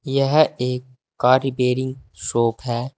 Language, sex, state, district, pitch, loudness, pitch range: Hindi, male, Uttar Pradesh, Saharanpur, 130 Hz, -20 LUFS, 120-135 Hz